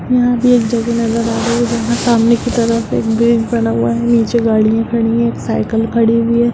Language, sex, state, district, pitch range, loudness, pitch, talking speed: Hindi, female, Bihar, Muzaffarpur, 225-235 Hz, -14 LUFS, 230 Hz, 240 wpm